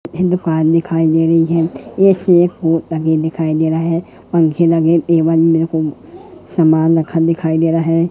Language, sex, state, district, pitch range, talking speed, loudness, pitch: Hindi, female, Madhya Pradesh, Katni, 160-170 Hz, 190 wpm, -14 LUFS, 165 Hz